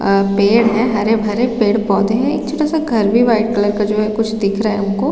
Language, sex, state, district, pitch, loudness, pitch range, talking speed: Hindi, female, Chhattisgarh, Raigarh, 215 Hz, -15 LUFS, 205-230 Hz, 290 wpm